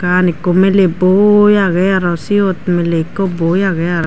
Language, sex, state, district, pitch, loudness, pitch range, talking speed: Chakma, female, Tripura, Dhalai, 185 Hz, -12 LUFS, 175-195 Hz, 175 wpm